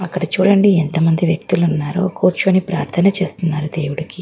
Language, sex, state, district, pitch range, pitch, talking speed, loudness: Telugu, female, Andhra Pradesh, Guntur, 165-190 Hz, 175 Hz, 140 wpm, -16 LUFS